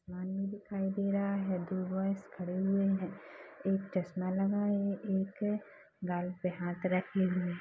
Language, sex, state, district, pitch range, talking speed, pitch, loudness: Hindi, female, Chhattisgarh, Rajnandgaon, 185-200 Hz, 150 wpm, 195 Hz, -35 LUFS